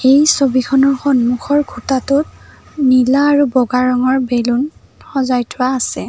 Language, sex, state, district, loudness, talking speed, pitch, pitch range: Assamese, female, Assam, Kamrup Metropolitan, -14 LUFS, 120 wpm, 260 Hz, 250-280 Hz